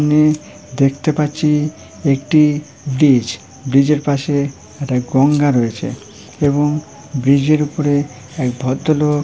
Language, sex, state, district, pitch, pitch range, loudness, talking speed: Bengali, female, West Bengal, Malda, 140 Hz, 130-150 Hz, -16 LUFS, 110 wpm